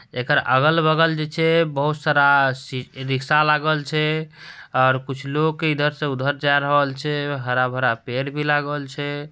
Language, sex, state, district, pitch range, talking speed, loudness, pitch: Angika, male, Bihar, Purnia, 135-155 Hz, 155 wpm, -20 LUFS, 145 Hz